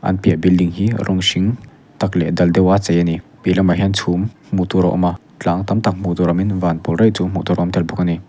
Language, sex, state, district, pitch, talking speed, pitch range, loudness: Mizo, male, Mizoram, Aizawl, 90 Hz, 245 wpm, 90-100 Hz, -17 LUFS